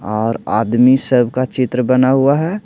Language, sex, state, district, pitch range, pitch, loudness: Hindi, male, Bihar, Patna, 115-130 Hz, 130 Hz, -14 LUFS